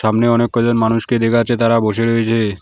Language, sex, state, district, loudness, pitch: Bengali, male, West Bengal, Alipurduar, -15 LUFS, 115 Hz